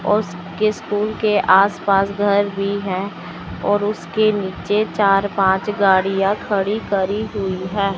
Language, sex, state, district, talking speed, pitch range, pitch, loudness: Hindi, male, Chandigarh, Chandigarh, 145 wpm, 195-210 Hz, 200 Hz, -18 LUFS